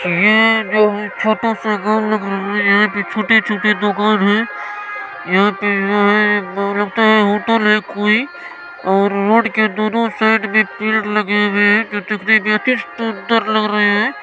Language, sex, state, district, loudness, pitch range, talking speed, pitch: Maithili, male, Bihar, Supaul, -15 LUFS, 205-220 Hz, 160 wpm, 215 Hz